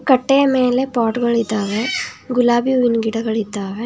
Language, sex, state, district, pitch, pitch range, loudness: Kannada, female, Karnataka, Bangalore, 235 Hz, 225-255 Hz, -17 LUFS